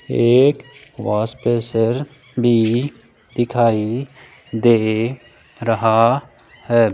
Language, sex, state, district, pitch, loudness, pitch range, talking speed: Hindi, male, Rajasthan, Jaipur, 120 Hz, -18 LUFS, 115-130 Hz, 70 wpm